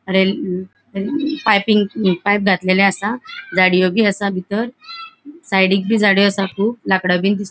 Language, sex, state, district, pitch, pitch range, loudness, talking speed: Konkani, female, Goa, North and South Goa, 200 Hz, 190-220 Hz, -16 LUFS, 160 wpm